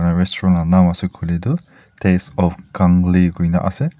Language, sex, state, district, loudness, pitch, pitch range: Nagamese, male, Nagaland, Dimapur, -17 LUFS, 90 Hz, 90-95 Hz